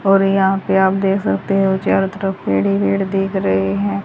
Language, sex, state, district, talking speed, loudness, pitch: Hindi, female, Haryana, Rohtak, 220 wpm, -17 LUFS, 195 Hz